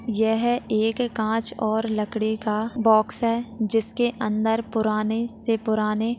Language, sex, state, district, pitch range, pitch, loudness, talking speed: Hindi, female, Chhattisgarh, Jashpur, 215-230 Hz, 220 Hz, -22 LUFS, 125 wpm